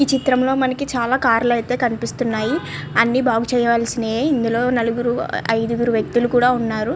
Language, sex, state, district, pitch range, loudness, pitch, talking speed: Telugu, female, Andhra Pradesh, Srikakulam, 230-250 Hz, -19 LUFS, 240 Hz, 145 wpm